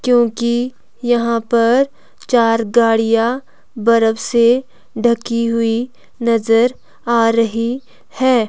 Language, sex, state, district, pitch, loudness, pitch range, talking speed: Hindi, female, Himachal Pradesh, Shimla, 235 Hz, -16 LUFS, 230-245 Hz, 90 wpm